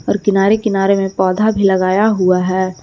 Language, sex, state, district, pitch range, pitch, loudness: Hindi, female, Jharkhand, Palamu, 185-205 Hz, 195 Hz, -14 LUFS